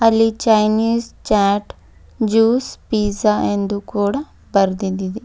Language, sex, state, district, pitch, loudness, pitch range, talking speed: Kannada, female, Karnataka, Bidar, 215 Hz, -18 LUFS, 200-225 Hz, 105 wpm